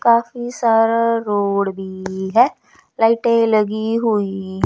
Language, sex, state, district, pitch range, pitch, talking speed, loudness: Hindi, male, Odisha, Nuapada, 200-230 Hz, 225 Hz, 105 wpm, -18 LUFS